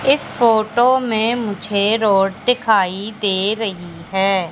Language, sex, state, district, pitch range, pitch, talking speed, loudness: Hindi, female, Madhya Pradesh, Katni, 195-230 Hz, 210 Hz, 120 wpm, -17 LUFS